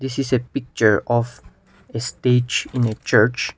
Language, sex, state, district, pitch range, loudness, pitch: English, male, Nagaland, Kohima, 115-130 Hz, -20 LUFS, 125 Hz